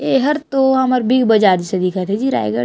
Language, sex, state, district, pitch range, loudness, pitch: Chhattisgarhi, female, Chhattisgarh, Raigarh, 190-265 Hz, -15 LUFS, 250 Hz